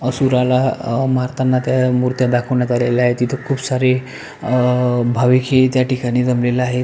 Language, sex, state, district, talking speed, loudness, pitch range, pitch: Marathi, male, Maharashtra, Pune, 160 wpm, -16 LUFS, 125-130 Hz, 125 Hz